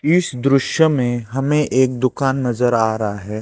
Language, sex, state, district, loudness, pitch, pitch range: Hindi, male, Chhattisgarh, Raipur, -18 LUFS, 130 Hz, 120-140 Hz